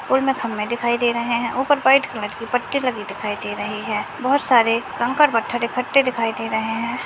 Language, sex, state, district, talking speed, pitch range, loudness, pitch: Hindi, female, Bihar, Saharsa, 195 wpm, 230-260 Hz, -20 LUFS, 240 Hz